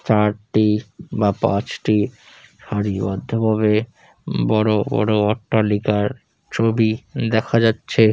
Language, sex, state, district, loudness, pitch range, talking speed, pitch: Bengali, male, West Bengal, Jalpaiguri, -19 LUFS, 105-115 Hz, 90 wpm, 110 Hz